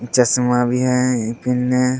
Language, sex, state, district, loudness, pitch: Angika, male, Bihar, Begusarai, -17 LUFS, 125 Hz